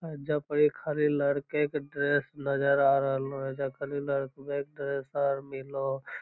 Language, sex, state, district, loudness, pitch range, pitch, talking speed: Magahi, female, Bihar, Lakhisarai, -30 LUFS, 135-145 Hz, 140 Hz, 155 wpm